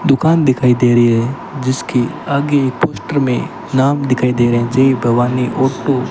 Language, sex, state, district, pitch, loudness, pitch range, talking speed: Hindi, male, Rajasthan, Bikaner, 130 Hz, -14 LUFS, 125-140 Hz, 185 wpm